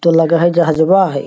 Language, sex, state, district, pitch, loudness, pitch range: Magahi, male, Bihar, Lakhisarai, 170 Hz, -12 LUFS, 160-170 Hz